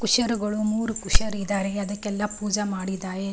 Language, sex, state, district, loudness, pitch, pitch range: Kannada, female, Karnataka, Raichur, -26 LUFS, 205 Hz, 195-215 Hz